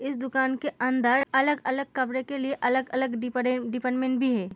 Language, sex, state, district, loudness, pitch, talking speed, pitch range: Hindi, female, Uttar Pradesh, Muzaffarnagar, -26 LUFS, 260 Hz, 160 wpm, 250-265 Hz